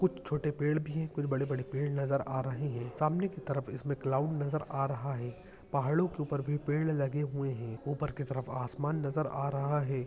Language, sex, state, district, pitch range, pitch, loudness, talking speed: Hindi, male, Uttarakhand, Tehri Garhwal, 135-150 Hz, 140 Hz, -34 LUFS, 225 wpm